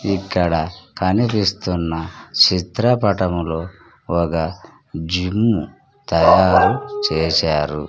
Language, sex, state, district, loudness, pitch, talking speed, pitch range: Telugu, male, Andhra Pradesh, Sri Satya Sai, -18 LUFS, 90 Hz, 55 wpm, 80-100 Hz